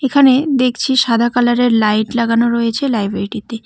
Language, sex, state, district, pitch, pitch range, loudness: Bengali, female, West Bengal, Cooch Behar, 235 Hz, 225-260 Hz, -14 LUFS